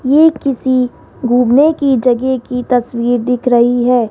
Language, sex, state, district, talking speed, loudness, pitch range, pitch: Hindi, female, Rajasthan, Jaipur, 145 wpm, -13 LUFS, 245-265 Hz, 250 Hz